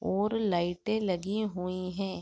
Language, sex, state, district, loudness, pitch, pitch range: Hindi, female, Chhattisgarh, Raigarh, -31 LUFS, 190 Hz, 180-210 Hz